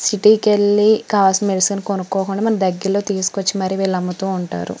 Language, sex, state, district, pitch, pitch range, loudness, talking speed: Telugu, female, Andhra Pradesh, Srikakulam, 195 Hz, 190-205 Hz, -17 LUFS, 200 wpm